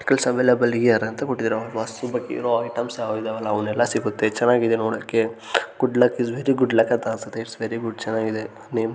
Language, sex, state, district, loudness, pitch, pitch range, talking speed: Kannada, male, Karnataka, Gulbarga, -22 LUFS, 115 Hz, 110-120 Hz, 215 wpm